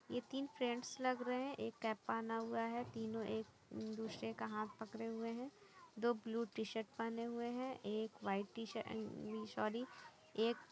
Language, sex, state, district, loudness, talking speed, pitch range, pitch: Hindi, female, Jharkhand, Jamtara, -44 LUFS, 185 wpm, 220-240 Hz, 225 Hz